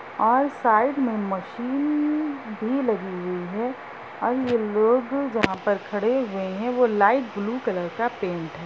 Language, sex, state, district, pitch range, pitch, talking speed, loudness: Hindi, female, Bihar, Darbhanga, 200-255 Hz, 230 Hz, 150 wpm, -24 LUFS